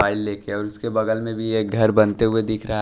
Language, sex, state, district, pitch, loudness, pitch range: Hindi, male, Maharashtra, Washim, 110 Hz, -21 LUFS, 105-110 Hz